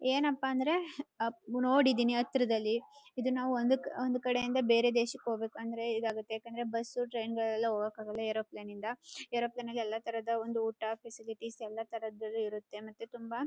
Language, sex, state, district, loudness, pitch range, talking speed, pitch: Kannada, female, Karnataka, Chamarajanagar, -34 LUFS, 225-250 Hz, 150 wpm, 230 Hz